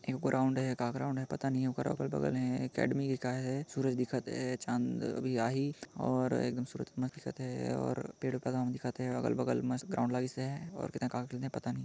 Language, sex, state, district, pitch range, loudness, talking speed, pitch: Chhattisgarhi, male, Chhattisgarh, Jashpur, 115-130 Hz, -35 LUFS, 210 wpm, 125 Hz